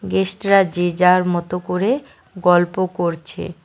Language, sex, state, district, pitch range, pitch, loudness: Bengali, male, West Bengal, Cooch Behar, 175-195 Hz, 180 Hz, -18 LUFS